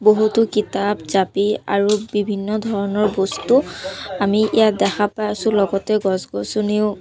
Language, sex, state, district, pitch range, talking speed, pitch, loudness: Assamese, female, Assam, Sonitpur, 200-215 Hz, 120 wpm, 210 Hz, -19 LUFS